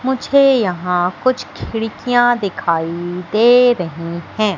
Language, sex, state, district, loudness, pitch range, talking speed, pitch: Hindi, female, Madhya Pradesh, Katni, -16 LUFS, 175-245 Hz, 105 wpm, 215 Hz